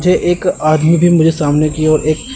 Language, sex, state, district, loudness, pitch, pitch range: Hindi, male, Chandigarh, Chandigarh, -12 LUFS, 160 Hz, 155-175 Hz